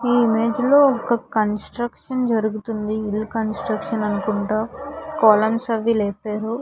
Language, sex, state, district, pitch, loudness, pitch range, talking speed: Telugu, female, Andhra Pradesh, Visakhapatnam, 225 Hz, -21 LUFS, 215-240 Hz, 110 wpm